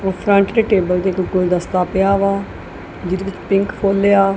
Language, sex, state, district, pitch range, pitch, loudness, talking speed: Punjabi, female, Punjab, Kapurthala, 180-195 Hz, 195 Hz, -17 LUFS, 165 wpm